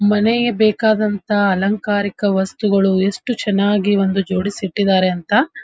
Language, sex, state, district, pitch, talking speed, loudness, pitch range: Kannada, female, Karnataka, Dharwad, 205 Hz, 115 wpm, -17 LUFS, 195-215 Hz